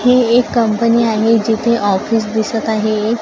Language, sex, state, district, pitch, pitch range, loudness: Marathi, female, Maharashtra, Gondia, 225 Hz, 220-235 Hz, -14 LUFS